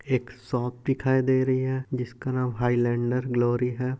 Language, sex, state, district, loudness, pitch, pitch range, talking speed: Hindi, male, Maharashtra, Nagpur, -26 LUFS, 125 Hz, 120-130 Hz, 165 wpm